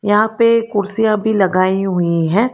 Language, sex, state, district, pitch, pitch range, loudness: Hindi, female, Karnataka, Bangalore, 205 Hz, 190-220 Hz, -15 LUFS